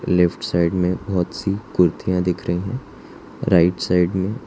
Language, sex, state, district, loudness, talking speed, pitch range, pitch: Hindi, male, Gujarat, Valsad, -20 LUFS, 160 wpm, 90-95 Hz, 90 Hz